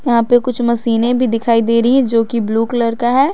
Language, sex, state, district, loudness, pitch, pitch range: Hindi, female, Jharkhand, Garhwa, -14 LUFS, 235 Hz, 230-245 Hz